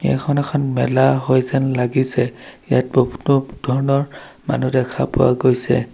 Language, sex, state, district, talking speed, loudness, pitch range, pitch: Assamese, male, Assam, Sonitpur, 130 wpm, -18 LUFS, 125-135 Hz, 130 Hz